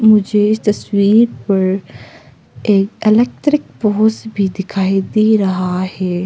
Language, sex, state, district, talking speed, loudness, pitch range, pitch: Hindi, female, Arunachal Pradesh, Papum Pare, 105 wpm, -15 LUFS, 190-220 Hz, 205 Hz